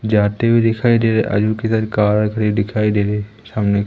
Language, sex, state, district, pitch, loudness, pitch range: Hindi, male, Madhya Pradesh, Umaria, 105 Hz, -17 LUFS, 105-110 Hz